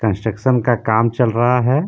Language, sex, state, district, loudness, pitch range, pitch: Hindi, male, Jharkhand, Deoghar, -16 LUFS, 110-125 Hz, 120 Hz